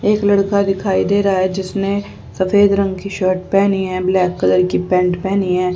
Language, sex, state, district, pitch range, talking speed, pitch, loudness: Hindi, male, Haryana, Rohtak, 185-200 Hz, 200 wpm, 190 Hz, -16 LUFS